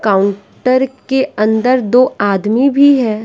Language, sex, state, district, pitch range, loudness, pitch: Hindi, female, Bihar, West Champaran, 210-265 Hz, -13 LUFS, 245 Hz